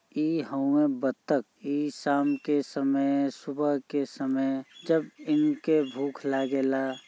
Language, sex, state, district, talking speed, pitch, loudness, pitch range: Bhojpuri, male, Uttar Pradesh, Gorakhpur, 120 wpm, 140 Hz, -28 LUFS, 135-150 Hz